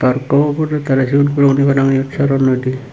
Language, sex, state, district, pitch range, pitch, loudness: Chakma, male, Tripura, Unakoti, 130-140 Hz, 135 Hz, -14 LUFS